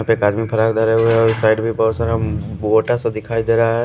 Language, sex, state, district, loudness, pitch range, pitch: Hindi, male, Punjab, Pathankot, -17 LUFS, 110-115 Hz, 115 Hz